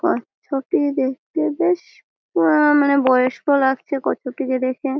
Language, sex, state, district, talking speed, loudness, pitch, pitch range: Bengali, female, West Bengal, Malda, 120 wpm, -19 LUFS, 280 Hz, 260-305 Hz